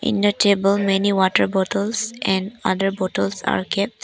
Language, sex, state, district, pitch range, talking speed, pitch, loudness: English, female, Arunachal Pradesh, Papum Pare, 190-205 Hz, 165 wpm, 200 Hz, -20 LUFS